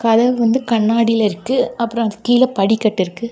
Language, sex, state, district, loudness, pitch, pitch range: Tamil, female, Tamil Nadu, Kanyakumari, -16 LUFS, 230 Hz, 215-240 Hz